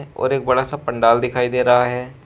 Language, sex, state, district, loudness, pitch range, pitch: Hindi, male, Uttar Pradesh, Shamli, -18 LUFS, 125-130 Hz, 125 Hz